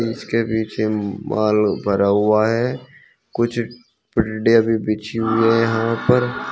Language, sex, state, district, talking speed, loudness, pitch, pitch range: Hindi, male, Uttar Pradesh, Shamli, 120 wpm, -19 LUFS, 115 Hz, 110-115 Hz